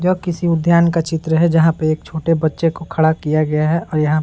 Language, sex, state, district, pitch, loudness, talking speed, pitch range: Hindi, male, Bihar, Saran, 165 Hz, -16 LUFS, 270 wpm, 155-170 Hz